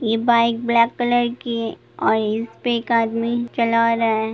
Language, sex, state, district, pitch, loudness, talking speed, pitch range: Hindi, female, Jharkhand, Jamtara, 230 Hz, -20 LUFS, 180 wpm, 230-240 Hz